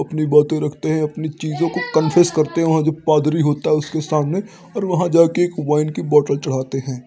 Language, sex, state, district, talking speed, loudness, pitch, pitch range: Hindi, male, Uttar Pradesh, Varanasi, 220 wpm, -18 LUFS, 155 Hz, 150-170 Hz